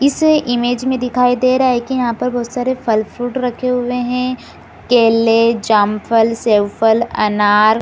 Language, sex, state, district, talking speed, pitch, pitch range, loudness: Hindi, female, Chhattisgarh, Bilaspur, 160 wpm, 245 Hz, 225-250 Hz, -15 LUFS